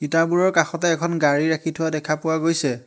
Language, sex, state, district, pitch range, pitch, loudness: Assamese, male, Assam, Hailakandi, 155-165 Hz, 160 Hz, -21 LUFS